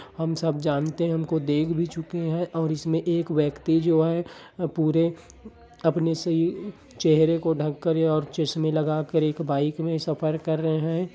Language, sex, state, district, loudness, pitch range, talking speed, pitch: Hindi, male, Chhattisgarh, Bilaspur, -25 LUFS, 155-165 Hz, 190 wpm, 160 Hz